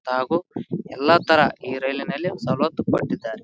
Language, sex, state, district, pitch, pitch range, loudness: Kannada, male, Karnataka, Bijapur, 160 Hz, 130-175 Hz, -22 LUFS